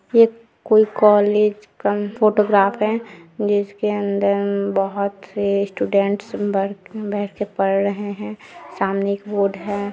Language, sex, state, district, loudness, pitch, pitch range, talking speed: Hindi, female, Bihar, Muzaffarpur, -19 LUFS, 205 Hz, 200-210 Hz, 115 wpm